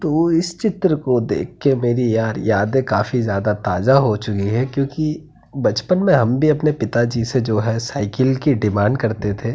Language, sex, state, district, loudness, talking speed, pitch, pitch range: Hindi, male, Uttarakhand, Tehri Garhwal, -18 LUFS, 180 wpm, 120 Hz, 110-145 Hz